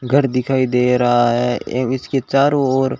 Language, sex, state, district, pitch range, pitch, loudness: Hindi, male, Rajasthan, Bikaner, 125-135 Hz, 130 Hz, -17 LUFS